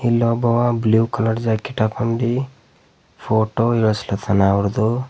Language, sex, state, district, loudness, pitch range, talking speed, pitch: Kannada, male, Karnataka, Bidar, -19 LUFS, 110-120 Hz, 95 wpm, 115 Hz